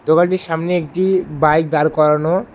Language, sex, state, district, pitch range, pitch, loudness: Bengali, male, West Bengal, Alipurduar, 155-180 Hz, 160 Hz, -16 LUFS